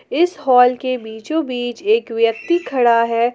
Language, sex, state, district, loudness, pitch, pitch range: Hindi, female, Jharkhand, Palamu, -17 LUFS, 250 Hz, 230-320 Hz